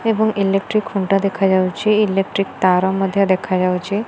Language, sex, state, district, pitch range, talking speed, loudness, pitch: Odia, female, Odisha, Khordha, 190-210 Hz, 135 wpm, -17 LUFS, 195 Hz